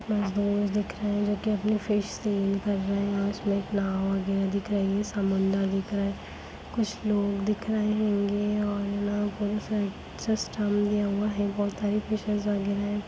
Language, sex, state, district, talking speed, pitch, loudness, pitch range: Hindi, female, Chhattisgarh, Sarguja, 165 wpm, 205 Hz, -28 LUFS, 200-210 Hz